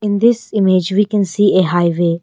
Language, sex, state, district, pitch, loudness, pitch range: English, female, Arunachal Pradesh, Longding, 195 Hz, -14 LUFS, 175-205 Hz